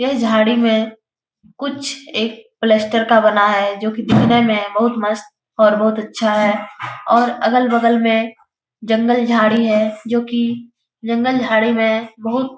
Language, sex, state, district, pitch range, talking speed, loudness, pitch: Hindi, female, Bihar, Jahanabad, 215-235 Hz, 140 wpm, -16 LUFS, 225 Hz